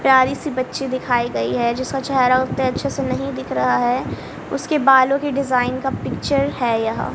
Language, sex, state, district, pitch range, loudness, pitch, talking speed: Hindi, female, Haryana, Rohtak, 245-270 Hz, -19 LUFS, 260 Hz, 195 wpm